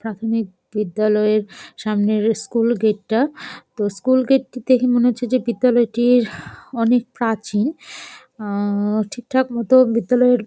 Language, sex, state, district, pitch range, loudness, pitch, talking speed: Bengali, female, West Bengal, Jalpaiguri, 215-245 Hz, -19 LUFS, 230 Hz, 120 wpm